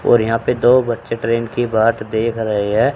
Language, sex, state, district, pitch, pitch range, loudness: Hindi, male, Haryana, Charkhi Dadri, 115 Hz, 110-120 Hz, -17 LUFS